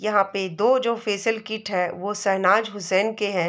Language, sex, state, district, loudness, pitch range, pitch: Hindi, female, Uttar Pradesh, Deoria, -23 LUFS, 190-220 Hz, 205 Hz